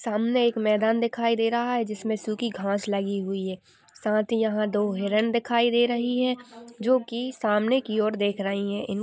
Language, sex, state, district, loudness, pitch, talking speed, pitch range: Hindi, female, Uttar Pradesh, Jyotiba Phule Nagar, -25 LUFS, 220 Hz, 205 wpm, 210-235 Hz